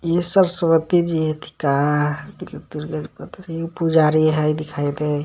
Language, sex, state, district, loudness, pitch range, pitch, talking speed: Magahi, male, Jharkhand, Palamu, -18 LUFS, 150-165 Hz, 155 Hz, 125 wpm